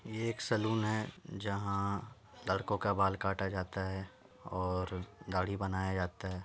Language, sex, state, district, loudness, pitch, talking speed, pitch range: Hindi, male, Uttar Pradesh, Ghazipur, -36 LUFS, 100 Hz, 150 wpm, 95-110 Hz